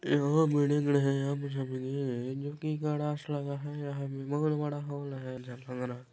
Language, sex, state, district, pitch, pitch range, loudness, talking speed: Hindi, male, Chhattisgarh, Balrampur, 140 Hz, 135-145 Hz, -32 LUFS, 60 wpm